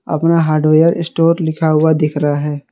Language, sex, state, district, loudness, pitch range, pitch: Hindi, male, Jharkhand, Garhwa, -14 LUFS, 155-165 Hz, 155 Hz